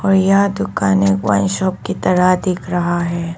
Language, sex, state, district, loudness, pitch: Hindi, female, Arunachal Pradesh, Papum Pare, -16 LUFS, 175 Hz